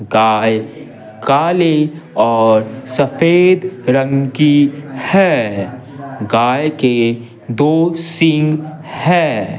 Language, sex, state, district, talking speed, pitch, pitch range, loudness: Hindi, male, Bihar, Patna, 75 wpm, 140 Hz, 115-155 Hz, -14 LUFS